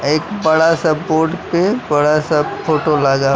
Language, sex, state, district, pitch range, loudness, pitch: Hindi, male, Bihar, West Champaran, 150-165 Hz, -15 LUFS, 155 Hz